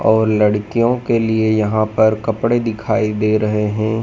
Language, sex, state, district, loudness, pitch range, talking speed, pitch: Hindi, male, Madhya Pradesh, Dhar, -16 LUFS, 105-115 Hz, 165 wpm, 110 Hz